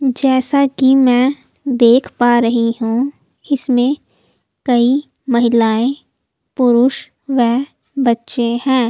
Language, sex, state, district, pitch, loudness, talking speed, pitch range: Hindi, female, Delhi, New Delhi, 250 Hz, -15 LUFS, 95 wpm, 240-270 Hz